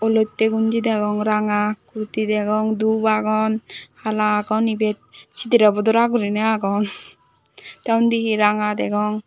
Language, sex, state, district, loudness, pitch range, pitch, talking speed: Chakma, female, Tripura, Dhalai, -20 LUFS, 210-220 Hz, 215 Hz, 130 wpm